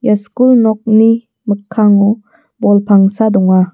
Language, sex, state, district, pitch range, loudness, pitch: Garo, female, Meghalaya, West Garo Hills, 200-225 Hz, -11 LUFS, 210 Hz